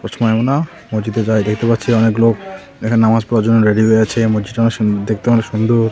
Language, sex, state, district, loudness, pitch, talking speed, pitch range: Bengali, male, West Bengal, Alipurduar, -15 LUFS, 110 Hz, 210 wpm, 110-115 Hz